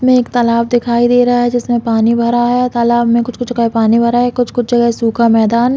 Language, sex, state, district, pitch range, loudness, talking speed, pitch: Hindi, female, Chhattisgarh, Balrampur, 235-245 Hz, -12 LUFS, 270 wpm, 240 Hz